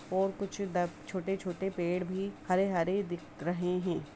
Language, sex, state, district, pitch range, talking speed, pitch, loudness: Hindi, female, Bihar, East Champaran, 175-195 Hz, 145 wpm, 185 Hz, -34 LUFS